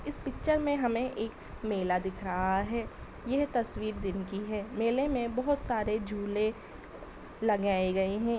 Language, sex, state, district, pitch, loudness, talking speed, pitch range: Hindi, female, Bihar, Sitamarhi, 215 Hz, -32 LUFS, 155 wpm, 200-240 Hz